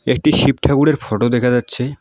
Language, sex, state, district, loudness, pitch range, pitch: Bengali, male, West Bengal, Alipurduar, -15 LUFS, 125-140 Hz, 130 Hz